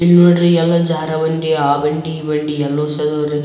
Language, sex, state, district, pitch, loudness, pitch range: Kannada, male, Karnataka, Raichur, 155 Hz, -15 LUFS, 150-165 Hz